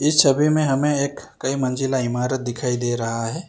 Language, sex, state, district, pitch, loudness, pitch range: Hindi, male, Karnataka, Bangalore, 135 Hz, -21 LUFS, 125-145 Hz